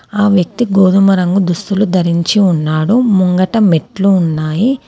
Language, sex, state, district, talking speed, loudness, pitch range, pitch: Telugu, female, Telangana, Komaram Bheem, 125 wpm, -12 LUFS, 175-205 Hz, 190 Hz